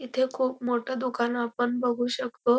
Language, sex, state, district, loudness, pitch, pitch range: Marathi, female, Maharashtra, Dhule, -28 LUFS, 245 Hz, 240-255 Hz